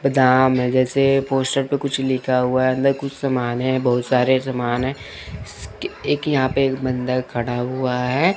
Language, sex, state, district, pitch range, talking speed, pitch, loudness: Hindi, male, Chandigarh, Chandigarh, 125-135 Hz, 170 wpm, 130 Hz, -20 LUFS